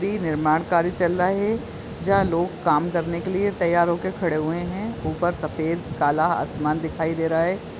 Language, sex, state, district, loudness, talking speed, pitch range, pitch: Hindi, female, Chhattisgarh, Bilaspur, -23 LUFS, 190 wpm, 160-185 Hz, 170 Hz